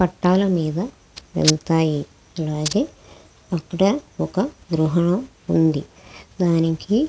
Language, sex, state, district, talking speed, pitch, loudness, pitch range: Telugu, female, Andhra Pradesh, Krishna, 75 wpm, 170 Hz, -21 LUFS, 155-185 Hz